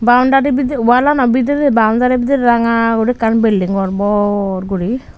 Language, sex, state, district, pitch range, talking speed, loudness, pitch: Chakma, female, Tripura, Unakoti, 210-255 Hz, 150 wpm, -13 LUFS, 235 Hz